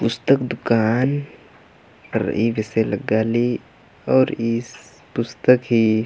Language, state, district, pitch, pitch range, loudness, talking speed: Kurukh, Chhattisgarh, Jashpur, 115 Hz, 110-120 Hz, -20 LUFS, 110 wpm